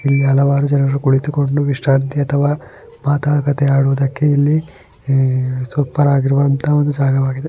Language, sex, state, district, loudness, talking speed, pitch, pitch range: Kannada, male, Karnataka, Shimoga, -16 LUFS, 105 wpm, 140 Hz, 135-145 Hz